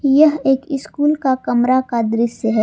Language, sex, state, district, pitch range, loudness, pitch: Hindi, female, Jharkhand, Palamu, 235-290 Hz, -17 LUFS, 260 Hz